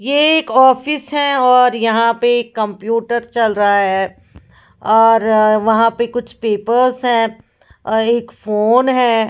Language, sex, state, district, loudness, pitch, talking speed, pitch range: Hindi, female, Bihar, West Champaran, -14 LUFS, 230 Hz, 130 wpm, 220-250 Hz